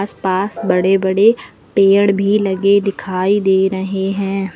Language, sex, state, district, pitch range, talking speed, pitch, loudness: Hindi, female, Uttar Pradesh, Lucknow, 190-200 Hz, 130 wpm, 195 Hz, -15 LUFS